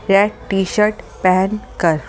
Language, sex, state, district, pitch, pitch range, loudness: Hindi, female, Delhi, New Delhi, 195 Hz, 185-210 Hz, -17 LUFS